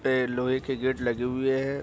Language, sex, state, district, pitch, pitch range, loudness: Hindi, male, Bihar, Araria, 130 Hz, 125-135 Hz, -27 LUFS